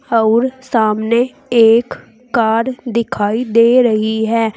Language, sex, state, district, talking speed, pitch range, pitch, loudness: Hindi, female, Uttar Pradesh, Saharanpur, 105 wpm, 220-245 Hz, 230 Hz, -14 LUFS